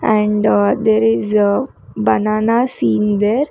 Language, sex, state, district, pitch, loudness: English, female, Karnataka, Bangalore, 205 Hz, -15 LUFS